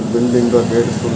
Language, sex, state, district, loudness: Hindi, male, Maharashtra, Chandrapur, -14 LUFS